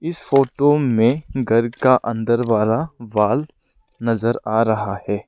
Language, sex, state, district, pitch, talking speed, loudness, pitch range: Hindi, male, Arunachal Pradesh, Lower Dibang Valley, 115 Hz, 135 wpm, -19 LUFS, 110-135 Hz